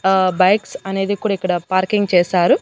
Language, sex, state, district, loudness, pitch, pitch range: Telugu, female, Andhra Pradesh, Annamaya, -17 LUFS, 190 Hz, 180-200 Hz